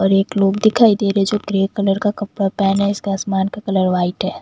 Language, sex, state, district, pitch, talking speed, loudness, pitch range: Hindi, female, Bihar, Katihar, 195 Hz, 255 wpm, -17 LUFS, 195-205 Hz